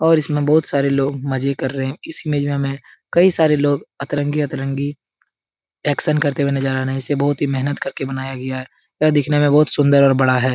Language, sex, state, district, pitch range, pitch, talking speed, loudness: Hindi, male, Bihar, Jahanabad, 135-145 Hz, 140 Hz, 225 wpm, -18 LUFS